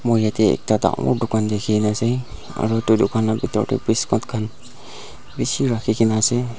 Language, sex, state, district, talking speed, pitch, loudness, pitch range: Nagamese, male, Nagaland, Dimapur, 155 wpm, 110 Hz, -20 LUFS, 110-120 Hz